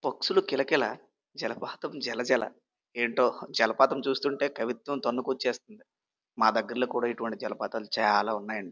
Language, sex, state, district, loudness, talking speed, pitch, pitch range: Telugu, male, Andhra Pradesh, Srikakulam, -29 LUFS, 110 wpm, 120 Hz, 110-135 Hz